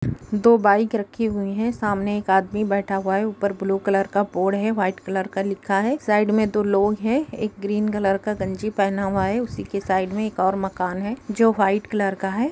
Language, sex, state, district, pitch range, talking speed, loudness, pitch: Hindi, female, Jharkhand, Sahebganj, 195-215 Hz, 230 wpm, -22 LUFS, 200 Hz